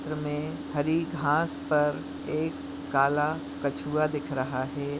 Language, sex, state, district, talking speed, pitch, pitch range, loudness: Hindi, female, Goa, North and South Goa, 130 wpm, 150 Hz, 145-155 Hz, -29 LUFS